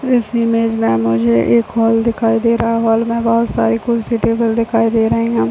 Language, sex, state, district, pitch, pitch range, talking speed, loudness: Hindi, female, Chhattisgarh, Bilaspur, 230 Hz, 225-230 Hz, 205 wpm, -15 LUFS